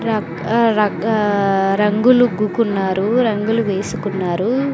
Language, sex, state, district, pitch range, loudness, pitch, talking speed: Telugu, female, Andhra Pradesh, Sri Satya Sai, 195-230 Hz, -17 LUFS, 210 Hz, 75 wpm